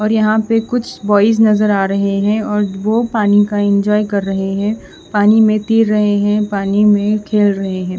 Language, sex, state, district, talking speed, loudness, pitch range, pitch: Hindi, female, Odisha, Khordha, 205 wpm, -14 LUFS, 200-215 Hz, 210 Hz